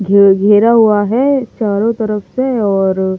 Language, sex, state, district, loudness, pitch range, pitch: Hindi, female, Delhi, New Delhi, -12 LUFS, 200-230 Hz, 210 Hz